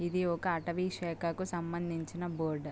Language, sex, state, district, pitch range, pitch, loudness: Telugu, female, Andhra Pradesh, Guntur, 165-175 Hz, 170 Hz, -35 LUFS